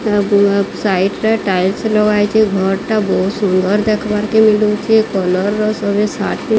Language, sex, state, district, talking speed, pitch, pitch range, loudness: Odia, female, Odisha, Sambalpur, 165 wpm, 210 Hz, 195-215 Hz, -14 LUFS